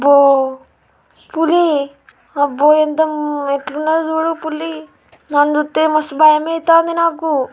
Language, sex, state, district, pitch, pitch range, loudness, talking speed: Telugu, female, Andhra Pradesh, Guntur, 310 Hz, 285-320 Hz, -15 LUFS, 105 wpm